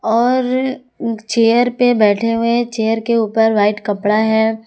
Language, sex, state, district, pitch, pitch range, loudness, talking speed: Hindi, female, Jharkhand, Ranchi, 225 Hz, 220-240 Hz, -15 LUFS, 140 wpm